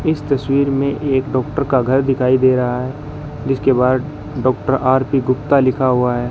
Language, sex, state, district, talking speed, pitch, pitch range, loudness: Hindi, male, Rajasthan, Bikaner, 170 wpm, 130 Hz, 130-140 Hz, -16 LUFS